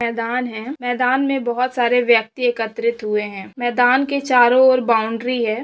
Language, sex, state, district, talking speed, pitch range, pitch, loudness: Hindi, female, Maharashtra, Aurangabad, 170 wpm, 230-255 Hz, 245 Hz, -18 LUFS